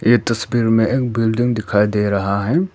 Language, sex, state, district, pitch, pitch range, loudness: Hindi, male, Arunachal Pradesh, Papum Pare, 115 Hz, 105-120 Hz, -17 LUFS